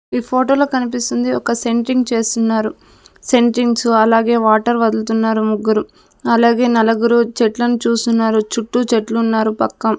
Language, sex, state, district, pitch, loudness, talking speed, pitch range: Telugu, female, Andhra Pradesh, Sri Satya Sai, 230 Hz, -15 LUFS, 110 wpm, 220-240 Hz